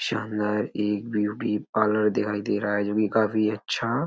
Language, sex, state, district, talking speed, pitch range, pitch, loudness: Hindi, male, Uttar Pradesh, Etah, 190 wpm, 105-110 Hz, 105 Hz, -25 LUFS